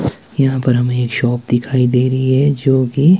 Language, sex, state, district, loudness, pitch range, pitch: Hindi, male, Himachal Pradesh, Shimla, -15 LUFS, 125-135 Hz, 130 Hz